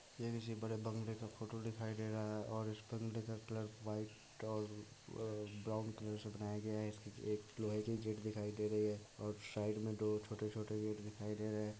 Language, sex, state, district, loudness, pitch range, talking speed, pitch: Hindi, male, Bihar, Muzaffarpur, -45 LUFS, 105-110 Hz, 185 wpm, 110 Hz